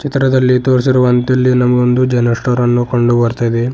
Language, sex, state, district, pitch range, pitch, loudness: Kannada, male, Karnataka, Bidar, 120-130 Hz, 125 Hz, -12 LUFS